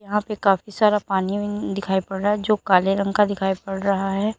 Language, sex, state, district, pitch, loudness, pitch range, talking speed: Hindi, female, Uttar Pradesh, Lalitpur, 200 Hz, -21 LUFS, 195-210 Hz, 230 wpm